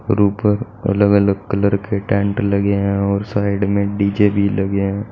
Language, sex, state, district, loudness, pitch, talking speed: Hindi, male, Uttar Pradesh, Saharanpur, -17 LUFS, 100 Hz, 175 wpm